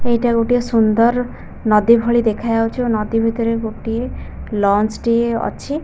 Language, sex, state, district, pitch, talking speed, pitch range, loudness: Odia, female, Odisha, Khordha, 230 Hz, 135 wpm, 220-235 Hz, -17 LUFS